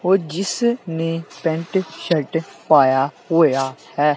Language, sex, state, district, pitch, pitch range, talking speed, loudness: Punjabi, male, Punjab, Kapurthala, 165 Hz, 150-180 Hz, 115 wpm, -19 LUFS